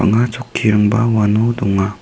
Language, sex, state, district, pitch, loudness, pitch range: Garo, male, Meghalaya, South Garo Hills, 110 Hz, -15 LUFS, 105-115 Hz